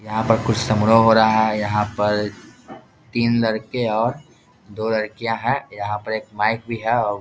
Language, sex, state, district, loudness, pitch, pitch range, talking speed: Hindi, male, Bihar, Jahanabad, -20 LUFS, 110 Hz, 105-115 Hz, 190 wpm